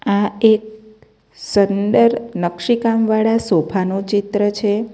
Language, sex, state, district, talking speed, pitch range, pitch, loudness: Gujarati, female, Gujarat, Navsari, 95 wpm, 200-225 Hz, 210 Hz, -17 LUFS